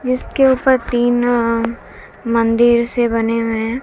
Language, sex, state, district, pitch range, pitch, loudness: Hindi, female, Haryana, Jhajjar, 230-245 Hz, 240 Hz, -16 LUFS